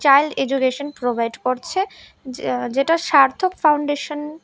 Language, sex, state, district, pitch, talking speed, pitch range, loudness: Bengali, female, Tripura, West Tripura, 285 Hz, 110 wpm, 255-305 Hz, -20 LUFS